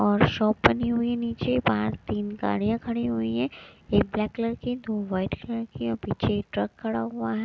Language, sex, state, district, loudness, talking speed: Hindi, female, Punjab, Kapurthala, -27 LUFS, 195 wpm